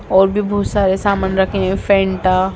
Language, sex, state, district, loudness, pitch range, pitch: Hindi, female, Bihar, Sitamarhi, -16 LUFS, 190-200 Hz, 190 Hz